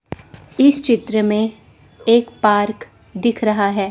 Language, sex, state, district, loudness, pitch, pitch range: Hindi, female, Chandigarh, Chandigarh, -17 LUFS, 220 Hz, 210-235 Hz